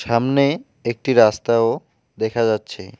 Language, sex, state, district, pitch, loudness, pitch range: Bengali, male, West Bengal, Alipurduar, 115 Hz, -19 LUFS, 115-130 Hz